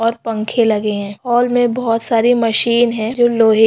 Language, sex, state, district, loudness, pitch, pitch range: Hindi, female, Maharashtra, Dhule, -15 LUFS, 230 Hz, 220-240 Hz